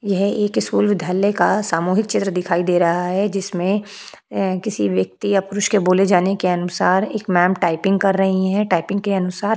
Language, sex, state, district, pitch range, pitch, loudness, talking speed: Hindi, female, Goa, North and South Goa, 180-205 Hz, 195 Hz, -18 LUFS, 200 wpm